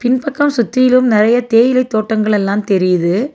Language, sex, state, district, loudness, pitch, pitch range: Tamil, female, Tamil Nadu, Nilgiris, -13 LUFS, 230 Hz, 210-255 Hz